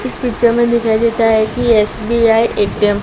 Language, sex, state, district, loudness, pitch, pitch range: Hindi, female, Gujarat, Gandhinagar, -13 LUFS, 230 Hz, 220-235 Hz